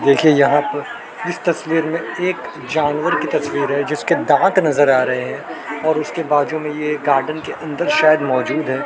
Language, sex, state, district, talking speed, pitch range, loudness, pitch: Hindi, male, Maharashtra, Mumbai Suburban, 190 wpm, 140-160 Hz, -17 LUFS, 150 Hz